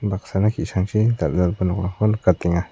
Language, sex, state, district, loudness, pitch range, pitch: Garo, male, Meghalaya, South Garo Hills, -21 LUFS, 90-105 Hz, 95 Hz